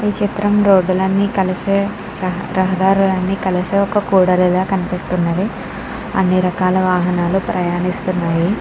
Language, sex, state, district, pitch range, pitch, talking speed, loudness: Telugu, female, Andhra Pradesh, Krishna, 180-195 Hz, 190 Hz, 110 wpm, -16 LUFS